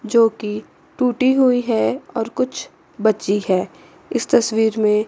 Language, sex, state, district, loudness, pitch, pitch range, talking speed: Hindi, female, Chandigarh, Chandigarh, -19 LUFS, 225 Hz, 210-250 Hz, 140 wpm